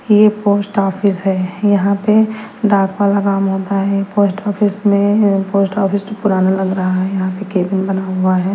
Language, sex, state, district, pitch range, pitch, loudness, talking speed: Hindi, female, Delhi, New Delhi, 190-205 Hz, 200 Hz, -15 LUFS, 190 wpm